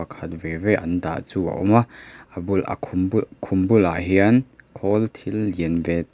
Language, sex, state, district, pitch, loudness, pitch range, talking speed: Mizo, male, Mizoram, Aizawl, 95 Hz, -22 LUFS, 85-105 Hz, 205 wpm